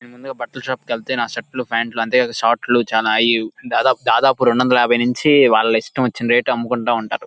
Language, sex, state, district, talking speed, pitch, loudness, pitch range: Telugu, male, Andhra Pradesh, Guntur, 225 wpm, 120 Hz, -17 LUFS, 115-125 Hz